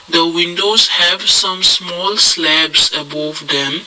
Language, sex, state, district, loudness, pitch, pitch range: English, male, Assam, Kamrup Metropolitan, -11 LUFS, 175 Hz, 155-185 Hz